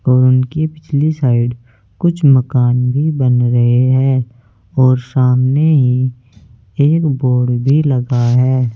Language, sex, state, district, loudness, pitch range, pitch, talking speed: Hindi, male, Uttar Pradesh, Saharanpur, -13 LUFS, 120-140 Hz, 130 Hz, 115 wpm